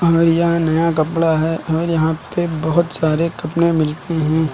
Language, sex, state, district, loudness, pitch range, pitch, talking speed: Hindi, male, Uttar Pradesh, Lucknow, -17 LUFS, 160-170 Hz, 165 Hz, 170 wpm